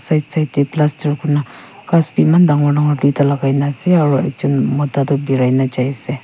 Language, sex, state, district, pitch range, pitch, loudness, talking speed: Nagamese, female, Nagaland, Kohima, 140-150 Hz, 145 Hz, -15 LUFS, 200 wpm